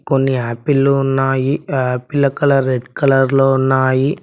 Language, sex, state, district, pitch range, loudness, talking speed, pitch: Telugu, male, Telangana, Mahabubabad, 130-140 Hz, -15 LUFS, 115 wpm, 135 Hz